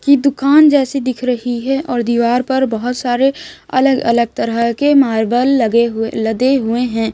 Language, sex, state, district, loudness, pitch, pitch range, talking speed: Hindi, female, Bihar, Kaimur, -14 LUFS, 250 Hz, 235-270 Hz, 175 wpm